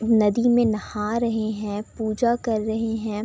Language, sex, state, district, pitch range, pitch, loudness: Hindi, female, Bihar, Saharsa, 215-230 Hz, 220 Hz, -23 LUFS